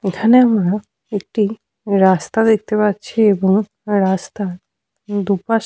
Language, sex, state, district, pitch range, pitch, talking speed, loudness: Bengali, female, Jharkhand, Sahebganj, 195-220 Hz, 205 Hz, 105 wpm, -17 LUFS